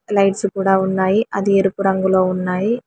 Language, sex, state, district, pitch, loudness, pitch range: Telugu, male, Telangana, Hyderabad, 195 Hz, -17 LUFS, 190-200 Hz